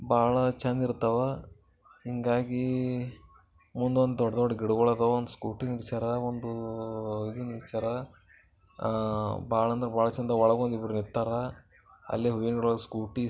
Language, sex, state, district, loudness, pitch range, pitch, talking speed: Kannada, male, Karnataka, Bijapur, -29 LUFS, 110-125 Hz, 115 Hz, 105 wpm